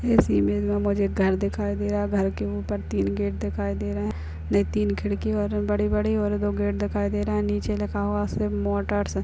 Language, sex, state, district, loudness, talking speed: Hindi, female, Uttar Pradesh, Muzaffarnagar, -25 LUFS, 240 wpm